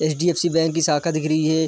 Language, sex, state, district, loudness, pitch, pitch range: Hindi, male, Bihar, Sitamarhi, -20 LUFS, 160 Hz, 155-170 Hz